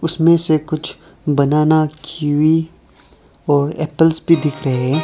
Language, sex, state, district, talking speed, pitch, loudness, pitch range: Hindi, male, Arunachal Pradesh, Lower Dibang Valley, 130 wpm, 155 Hz, -16 LUFS, 150-160 Hz